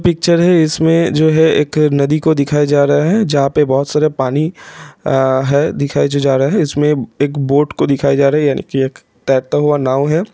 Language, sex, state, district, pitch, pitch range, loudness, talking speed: Hindi, male, Jharkhand, Jamtara, 145 Hz, 140-155 Hz, -13 LUFS, 225 wpm